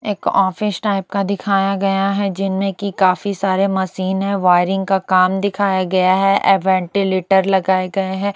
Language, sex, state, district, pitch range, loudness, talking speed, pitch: Hindi, female, Bihar, Katihar, 190-200 Hz, -17 LUFS, 170 wpm, 195 Hz